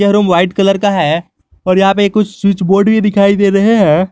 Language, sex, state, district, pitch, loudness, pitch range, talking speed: Hindi, male, Jharkhand, Garhwa, 200 Hz, -11 LUFS, 190-205 Hz, 245 wpm